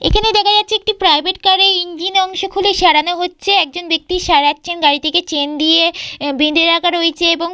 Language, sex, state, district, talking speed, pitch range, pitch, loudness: Bengali, female, West Bengal, Purulia, 175 wpm, 325-385 Hz, 350 Hz, -13 LUFS